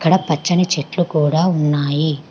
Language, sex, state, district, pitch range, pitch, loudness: Telugu, female, Telangana, Hyderabad, 150-175 Hz, 155 Hz, -17 LUFS